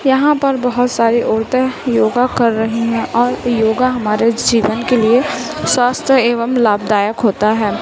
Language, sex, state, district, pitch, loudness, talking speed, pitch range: Hindi, female, Chhattisgarh, Raipur, 235 Hz, -14 LUFS, 155 wpm, 220-250 Hz